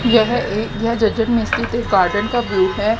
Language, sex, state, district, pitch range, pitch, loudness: Hindi, female, Haryana, Jhajjar, 210-235 Hz, 225 Hz, -17 LUFS